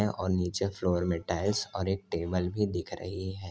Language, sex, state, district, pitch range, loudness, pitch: Hindi, male, Uttar Pradesh, Hamirpur, 90-100 Hz, -31 LUFS, 95 Hz